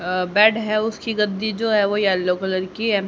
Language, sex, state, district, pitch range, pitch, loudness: Hindi, female, Haryana, Charkhi Dadri, 190-215 Hz, 205 Hz, -20 LUFS